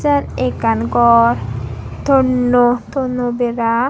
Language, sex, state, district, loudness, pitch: Chakma, female, Tripura, Dhalai, -15 LUFS, 235 Hz